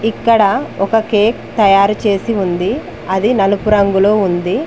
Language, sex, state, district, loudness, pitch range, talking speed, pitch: Telugu, female, Telangana, Mahabubabad, -13 LUFS, 195-220 Hz, 130 wpm, 205 Hz